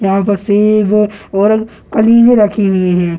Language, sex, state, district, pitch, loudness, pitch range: Hindi, male, Bihar, Gaya, 205 Hz, -11 LUFS, 195-215 Hz